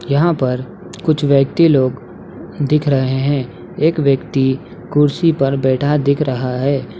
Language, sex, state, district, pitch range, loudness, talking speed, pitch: Hindi, male, Uttar Pradesh, Budaun, 130-150 Hz, -16 LUFS, 135 wpm, 140 Hz